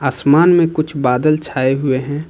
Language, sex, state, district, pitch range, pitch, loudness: Hindi, male, Jharkhand, Ranchi, 130-155 Hz, 145 Hz, -15 LUFS